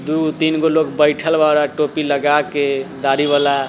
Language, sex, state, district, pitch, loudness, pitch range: Bajjika, male, Bihar, Vaishali, 150 Hz, -16 LUFS, 145-155 Hz